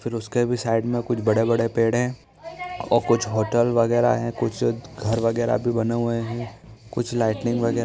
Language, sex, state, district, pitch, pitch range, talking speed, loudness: Hindi, male, Bihar, East Champaran, 115 Hz, 115-120 Hz, 185 wpm, -23 LUFS